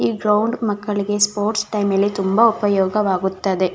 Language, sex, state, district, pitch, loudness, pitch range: Kannada, female, Karnataka, Shimoga, 205 Hz, -18 LUFS, 195-210 Hz